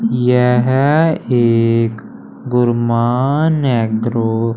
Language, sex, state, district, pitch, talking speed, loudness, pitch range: Hindi, male, Punjab, Fazilka, 120 Hz, 65 wpm, -14 LUFS, 115-130 Hz